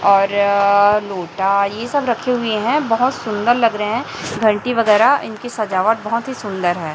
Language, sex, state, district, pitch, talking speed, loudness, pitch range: Hindi, female, Chhattisgarh, Raipur, 215 Hz, 175 wpm, -17 LUFS, 200-235 Hz